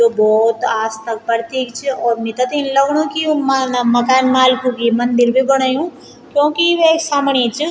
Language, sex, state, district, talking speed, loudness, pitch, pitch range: Garhwali, female, Uttarakhand, Tehri Garhwal, 180 wpm, -15 LUFS, 260 Hz, 235-285 Hz